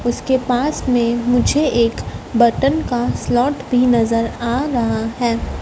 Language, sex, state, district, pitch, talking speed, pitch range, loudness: Hindi, female, Madhya Pradesh, Dhar, 245 Hz, 140 wpm, 235-255 Hz, -17 LUFS